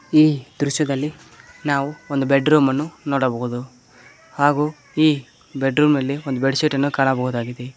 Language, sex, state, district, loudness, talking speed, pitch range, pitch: Kannada, male, Karnataka, Koppal, -20 LUFS, 125 wpm, 130-150 Hz, 140 Hz